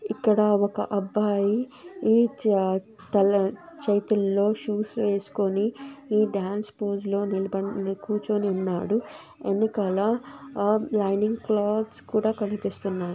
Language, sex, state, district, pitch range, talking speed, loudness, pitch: Telugu, female, Andhra Pradesh, Anantapur, 200-220 Hz, 90 wpm, -25 LUFS, 210 Hz